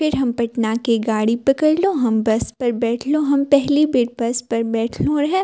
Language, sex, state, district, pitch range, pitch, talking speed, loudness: Maithili, female, Bihar, Purnia, 230-285 Hz, 245 Hz, 185 wpm, -18 LUFS